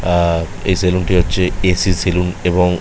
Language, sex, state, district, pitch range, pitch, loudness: Bengali, male, West Bengal, Malda, 90-95 Hz, 90 Hz, -16 LUFS